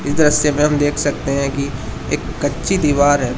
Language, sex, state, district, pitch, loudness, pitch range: Hindi, male, Uttar Pradesh, Shamli, 145 Hz, -17 LUFS, 140-150 Hz